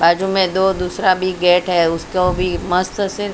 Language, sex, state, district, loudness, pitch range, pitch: Hindi, female, Maharashtra, Mumbai Suburban, -17 LUFS, 180-190 Hz, 185 Hz